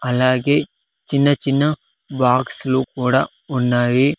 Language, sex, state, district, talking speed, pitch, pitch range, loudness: Telugu, male, Andhra Pradesh, Sri Satya Sai, 100 wpm, 130 Hz, 125-140 Hz, -18 LUFS